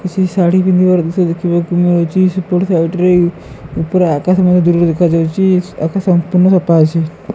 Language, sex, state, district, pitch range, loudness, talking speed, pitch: Odia, female, Odisha, Malkangiri, 170-185 Hz, -12 LUFS, 145 wpm, 180 Hz